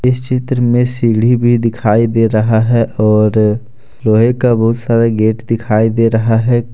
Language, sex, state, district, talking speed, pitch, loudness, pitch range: Hindi, male, Jharkhand, Deoghar, 170 wpm, 115 Hz, -12 LUFS, 110-120 Hz